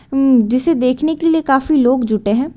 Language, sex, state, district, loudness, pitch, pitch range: Hindi, female, Uttar Pradesh, Lucknow, -14 LUFS, 265 Hz, 250-310 Hz